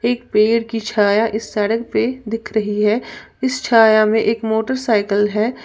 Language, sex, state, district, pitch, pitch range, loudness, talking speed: Hindi, female, Uttar Pradesh, Lalitpur, 220 Hz, 215-230 Hz, -17 LUFS, 170 wpm